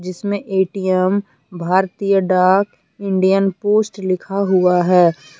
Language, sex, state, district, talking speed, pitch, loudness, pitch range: Hindi, female, Jharkhand, Deoghar, 100 wpm, 190 Hz, -17 LUFS, 180-195 Hz